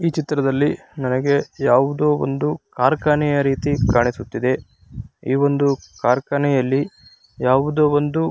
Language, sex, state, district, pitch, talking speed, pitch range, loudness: Kannada, male, Karnataka, Raichur, 140 Hz, 100 wpm, 130-150 Hz, -19 LUFS